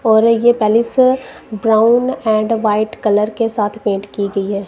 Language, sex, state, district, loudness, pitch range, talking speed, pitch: Hindi, female, Punjab, Kapurthala, -15 LUFS, 210-230 Hz, 165 wpm, 220 Hz